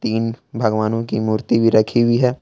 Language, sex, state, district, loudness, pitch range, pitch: Hindi, male, Jharkhand, Ranchi, -18 LUFS, 110-120 Hz, 115 Hz